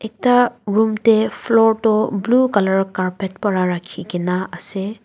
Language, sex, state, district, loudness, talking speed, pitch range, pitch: Nagamese, female, Nagaland, Dimapur, -18 LUFS, 130 wpm, 190-225 Hz, 210 Hz